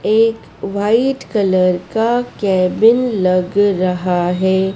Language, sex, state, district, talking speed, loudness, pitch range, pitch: Hindi, female, Madhya Pradesh, Dhar, 100 wpm, -15 LUFS, 185-225 Hz, 195 Hz